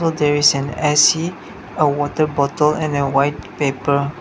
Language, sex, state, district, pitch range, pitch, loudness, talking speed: English, male, Nagaland, Dimapur, 140-155 Hz, 145 Hz, -17 LUFS, 155 wpm